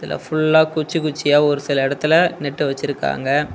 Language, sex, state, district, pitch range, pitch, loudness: Tamil, male, Tamil Nadu, Nilgiris, 145-160 Hz, 150 Hz, -18 LUFS